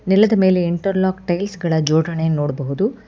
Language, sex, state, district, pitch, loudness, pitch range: Kannada, female, Karnataka, Bangalore, 180 Hz, -18 LUFS, 160-195 Hz